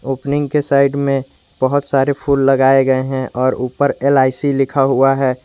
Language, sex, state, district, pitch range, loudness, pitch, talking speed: Hindi, male, Jharkhand, Garhwa, 130-140 Hz, -15 LUFS, 135 Hz, 175 wpm